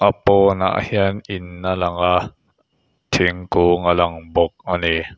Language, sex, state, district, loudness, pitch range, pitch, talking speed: Mizo, male, Mizoram, Aizawl, -18 LUFS, 85-100 Hz, 90 Hz, 140 wpm